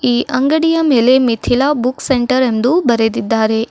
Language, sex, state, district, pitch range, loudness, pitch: Kannada, female, Karnataka, Bidar, 235-270 Hz, -13 LUFS, 250 Hz